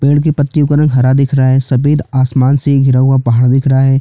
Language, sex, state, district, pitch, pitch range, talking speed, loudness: Hindi, male, Chhattisgarh, Jashpur, 135 Hz, 130-145 Hz, 270 wpm, -11 LUFS